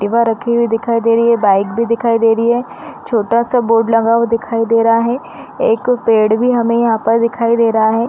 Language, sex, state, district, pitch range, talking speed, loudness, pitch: Hindi, female, Uttar Pradesh, Varanasi, 225-235 Hz, 230 wpm, -13 LUFS, 230 Hz